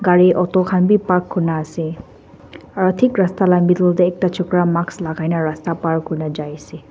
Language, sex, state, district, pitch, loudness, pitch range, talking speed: Nagamese, female, Nagaland, Dimapur, 175 Hz, -17 LUFS, 160-185 Hz, 190 wpm